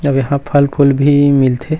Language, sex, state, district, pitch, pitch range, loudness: Chhattisgarhi, male, Chhattisgarh, Rajnandgaon, 140 Hz, 140-145 Hz, -12 LUFS